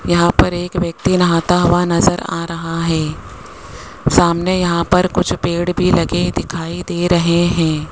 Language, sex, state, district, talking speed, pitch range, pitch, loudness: Hindi, male, Rajasthan, Jaipur, 160 wpm, 170-175 Hz, 175 Hz, -16 LUFS